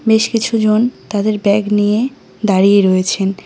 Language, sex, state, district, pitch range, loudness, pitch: Bengali, female, West Bengal, Cooch Behar, 200-225 Hz, -14 LUFS, 210 Hz